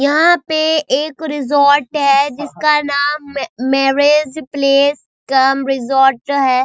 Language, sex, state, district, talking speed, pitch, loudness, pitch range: Hindi, female, Bihar, Saharsa, 110 wpm, 285 Hz, -14 LUFS, 270-300 Hz